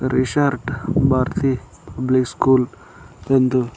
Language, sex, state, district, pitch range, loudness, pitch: Kannada, male, Karnataka, Koppal, 125-135 Hz, -19 LUFS, 130 Hz